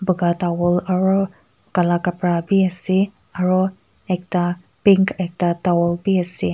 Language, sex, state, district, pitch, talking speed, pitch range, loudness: Nagamese, female, Nagaland, Kohima, 180 Hz, 130 wpm, 175-190 Hz, -19 LUFS